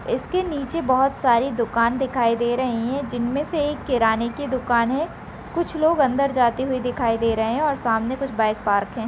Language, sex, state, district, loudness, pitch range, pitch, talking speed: Hindi, female, Rajasthan, Nagaur, -22 LUFS, 235-280 Hz, 250 Hz, 205 wpm